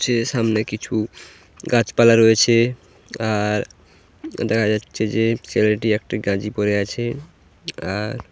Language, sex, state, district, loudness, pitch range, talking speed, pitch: Bengali, male, West Bengal, Paschim Medinipur, -20 LUFS, 105-115 Hz, 110 wpm, 110 Hz